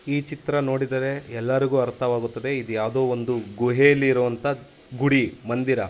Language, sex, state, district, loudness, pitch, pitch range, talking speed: Kannada, male, Karnataka, Dharwad, -23 LUFS, 130 Hz, 120-140 Hz, 120 wpm